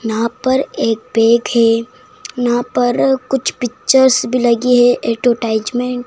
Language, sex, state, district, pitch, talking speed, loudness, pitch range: Hindi, male, Madhya Pradesh, Dhar, 245 Hz, 140 wpm, -14 LUFS, 230-250 Hz